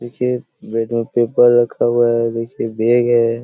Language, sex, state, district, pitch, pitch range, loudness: Hindi, male, Chhattisgarh, Korba, 120 Hz, 115-120 Hz, -16 LUFS